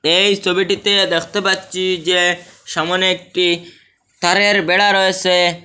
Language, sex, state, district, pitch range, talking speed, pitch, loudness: Bengali, male, Assam, Hailakandi, 175-195 Hz, 105 wpm, 185 Hz, -15 LUFS